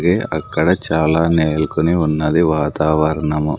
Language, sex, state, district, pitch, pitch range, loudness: Telugu, male, Andhra Pradesh, Sri Satya Sai, 80 Hz, 75-80 Hz, -16 LUFS